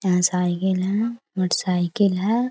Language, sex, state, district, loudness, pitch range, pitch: Hindi, female, Bihar, Muzaffarpur, -22 LUFS, 180-205 Hz, 190 Hz